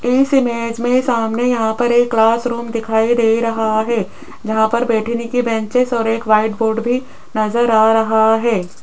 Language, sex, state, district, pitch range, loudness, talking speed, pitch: Hindi, female, Rajasthan, Jaipur, 220-240 Hz, -16 LUFS, 185 wpm, 230 Hz